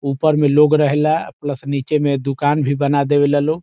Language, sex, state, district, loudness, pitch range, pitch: Bhojpuri, male, Bihar, Saran, -16 LUFS, 140-150 Hz, 145 Hz